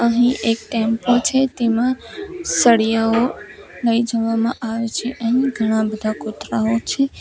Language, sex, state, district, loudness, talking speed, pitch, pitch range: Gujarati, female, Gujarat, Valsad, -19 LUFS, 125 wpm, 230 Hz, 225-245 Hz